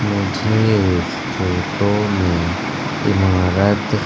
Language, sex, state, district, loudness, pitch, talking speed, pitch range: Hindi, male, Madhya Pradesh, Katni, -18 LUFS, 100 Hz, 75 wpm, 90-105 Hz